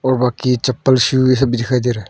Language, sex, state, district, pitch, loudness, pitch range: Hindi, male, Arunachal Pradesh, Longding, 125 Hz, -15 LUFS, 125-130 Hz